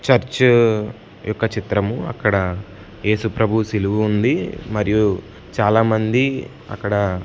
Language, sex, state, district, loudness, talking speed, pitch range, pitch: Telugu, male, Andhra Pradesh, Sri Satya Sai, -19 LUFS, 75 wpm, 105-110 Hz, 105 Hz